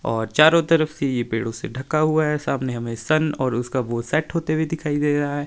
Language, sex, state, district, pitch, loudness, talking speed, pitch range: Hindi, male, Himachal Pradesh, Shimla, 145 Hz, -21 LUFS, 250 wpm, 120-155 Hz